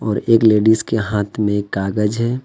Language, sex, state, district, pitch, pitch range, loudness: Hindi, male, Jharkhand, Deoghar, 105 Hz, 105-110 Hz, -17 LUFS